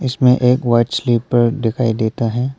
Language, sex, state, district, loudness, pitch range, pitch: Hindi, male, Arunachal Pradesh, Papum Pare, -16 LUFS, 115-125 Hz, 120 Hz